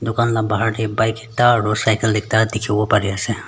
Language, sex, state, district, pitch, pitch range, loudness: Nagamese, male, Nagaland, Dimapur, 110 Hz, 105-115 Hz, -18 LUFS